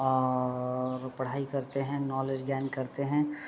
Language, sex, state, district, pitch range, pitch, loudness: Hindi, male, Bihar, Saharsa, 130-140 Hz, 135 Hz, -32 LUFS